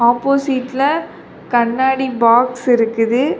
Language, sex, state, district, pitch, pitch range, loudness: Tamil, female, Tamil Nadu, Kanyakumari, 250 Hz, 235-270 Hz, -15 LUFS